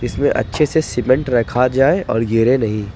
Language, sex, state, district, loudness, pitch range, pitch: Hindi, male, Jharkhand, Ranchi, -16 LUFS, 115-145 Hz, 125 Hz